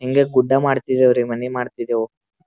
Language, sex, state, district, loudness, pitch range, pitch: Kannada, male, Karnataka, Gulbarga, -18 LUFS, 120-135 Hz, 125 Hz